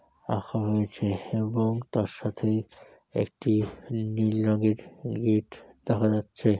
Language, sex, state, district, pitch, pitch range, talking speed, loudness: Bengali, male, West Bengal, Jalpaiguri, 110 Hz, 105-110 Hz, 100 wpm, -28 LUFS